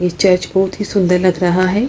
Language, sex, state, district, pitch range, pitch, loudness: Hindi, female, Bihar, Lakhisarai, 180-195 Hz, 185 Hz, -15 LUFS